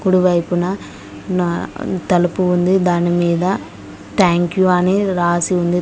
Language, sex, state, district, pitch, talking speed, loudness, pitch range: Telugu, female, Telangana, Mahabubabad, 175 Hz, 115 wpm, -16 LUFS, 175-185 Hz